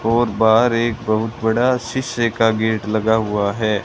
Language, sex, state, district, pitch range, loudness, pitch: Hindi, male, Rajasthan, Bikaner, 110-115 Hz, -18 LUFS, 110 Hz